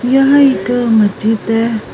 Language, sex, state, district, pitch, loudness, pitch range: Punjabi, female, Karnataka, Bangalore, 230 Hz, -12 LUFS, 220-265 Hz